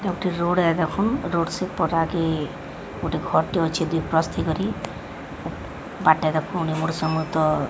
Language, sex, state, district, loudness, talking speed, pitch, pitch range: Odia, female, Odisha, Sambalpur, -23 LUFS, 150 wpm, 165 Hz, 160-175 Hz